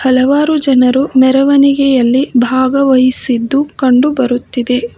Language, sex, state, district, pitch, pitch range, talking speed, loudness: Kannada, female, Karnataka, Bangalore, 260 Hz, 250-275 Hz, 70 wpm, -10 LUFS